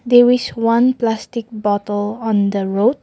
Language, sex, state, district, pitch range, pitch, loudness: English, female, Nagaland, Kohima, 205-240 Hz, 225 Hz, -17 LUFS